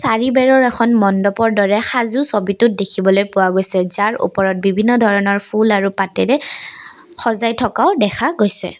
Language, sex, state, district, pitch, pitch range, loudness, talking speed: Assamese, female, Assam, Kamrup Metropolitan, 210 Hz, 195-235 Hz, -15 LUFS, 135 wpm